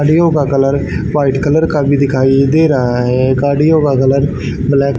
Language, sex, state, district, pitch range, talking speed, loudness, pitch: Hindi, male, Haryana, Rohtak, 130-145 Hz, 190 wpm, -12 LUFS, 140 Hz